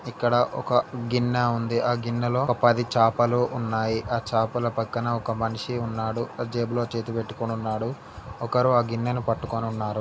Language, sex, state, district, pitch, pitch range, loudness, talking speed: Telugu, male, Telangana, Karimnagar, 120 Hz, 115-120 Hz, -25 LUFS, 125 wpm